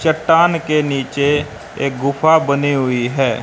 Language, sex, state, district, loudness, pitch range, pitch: Hindi, male, Haryana, Rohtak, -16 LUFS, 135-155 Hz, 140 Hz